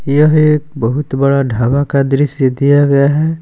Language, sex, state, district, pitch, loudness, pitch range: Hindi, male, Jharkhand, Palamu, 140 Hz, -12 LUFS, 135-150 Hz